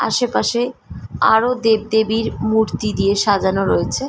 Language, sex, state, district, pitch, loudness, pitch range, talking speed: Bengali, female, West Bengal, Malda, 220 Hz, -17 LUFS, 205-235 Hz, 115 wpm